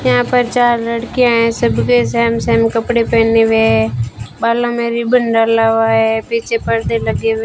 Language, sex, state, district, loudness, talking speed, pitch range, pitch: Hindi, female, Rajasthan, Bikaner, -14 LUFS, 175 wpm, 220-235 Hz, 230 Hz